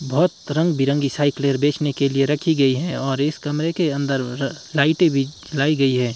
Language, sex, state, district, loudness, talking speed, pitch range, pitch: Hindi, male, Himachal Pradesh, Shimla, -20 LUFS, 195 wpm, 135-155 Hz, 145 Hz